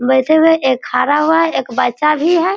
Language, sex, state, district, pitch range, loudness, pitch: Hindi, female, Bihar, Sitamarhi, 260-325 Hz, -13 LUFS, 300 Hz